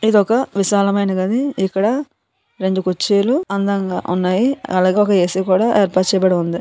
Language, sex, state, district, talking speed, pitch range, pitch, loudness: Telugu, female, Andhra Pradesh, Visakhapatnam, 135 wpm, 185-220 Hz, 200 Hz, -17 LUFS